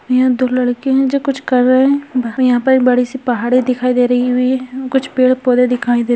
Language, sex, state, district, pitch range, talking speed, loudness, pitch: Hindi, female, Rajasthan, Churu, 250-265 Hz, 245 wpm, -14 LUFS, 255 Hz